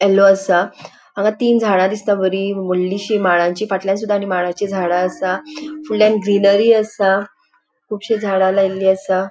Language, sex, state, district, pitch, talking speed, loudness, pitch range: Konkani, female, Goa, North and South Goa, 195 Hz, 135 wpm, -16 LUFS, 190-210 Hz